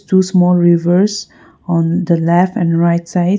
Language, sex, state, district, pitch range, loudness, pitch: English, female, Nagaland, Kohima, 170-190 Hz, -13 LUFS, 175 Hz